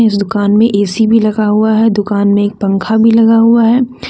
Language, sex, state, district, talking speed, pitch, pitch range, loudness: Hindi, female, Jharkhand, Deoghar, 220 wpm, 220 Hz, 205-225 Hz, -10 LUFS